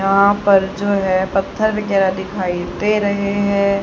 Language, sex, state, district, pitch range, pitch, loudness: Hindi, female, Haryana, Charkhi Dadri, 190-205 Hz, 200 Hz, -17 LUFS